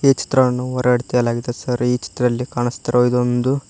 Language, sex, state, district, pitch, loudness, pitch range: Kannada, male, Karnataka, Koppal, 125 Hz, -19 LUFS, 120-125 Hz